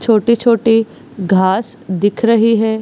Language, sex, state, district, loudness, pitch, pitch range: Hindi, female, Bihar, Darbhanga, -14 LUFS, 225 Hz, 205-230 Hz